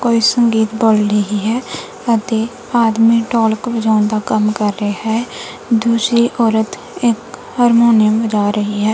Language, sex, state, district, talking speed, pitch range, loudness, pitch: Punjabi, female, Punjab, Kapurthala, 140 wpm, 215-235 Hz, -15 LUFS, 225 Hz